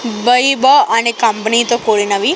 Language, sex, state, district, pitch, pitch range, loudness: Telugu, female, Andhra Pradesh, Sri Satya Sai, 235 Hz, 220-245 Hz, -12 LUFS